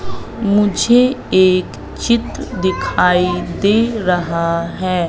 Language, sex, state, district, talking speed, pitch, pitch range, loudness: Hindi, female, Madhya Pradesh, Katni, 80 wpm, 185 Hz, 175-215 Hz, -15 LUFS